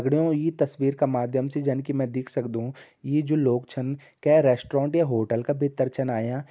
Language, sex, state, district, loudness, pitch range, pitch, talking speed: Garhwali, male, Uttarakhand, Uttarkashi, -25 LUFS, 125-145 Hz, 135 Hz, 210 wpm